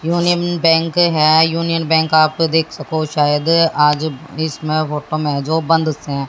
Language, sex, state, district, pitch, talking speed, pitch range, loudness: Hindi, female, Haryana, Jhajjar, 160 Hz, 180 wpm, 150-165 Hz, -15 LUFS